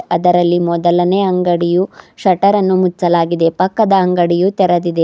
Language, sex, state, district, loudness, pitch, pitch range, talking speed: Kannada, female, Karnataka, Bidar, -13 LUFS, 175 Hz, 175-190 Hz, 105 wpm